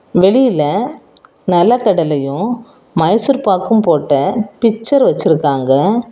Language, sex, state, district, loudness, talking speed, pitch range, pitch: Tamil, female, Tamil Nadu, Kanyakumari, -13 LUFS, 60 wpm, 160-230 Hz, 205 Hz